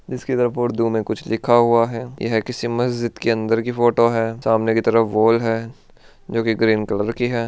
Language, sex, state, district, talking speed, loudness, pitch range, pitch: Hindi, male, Rajasthan, Churu, 215 wpm, -19 LUFS, 115-120 Hz, 115 Hz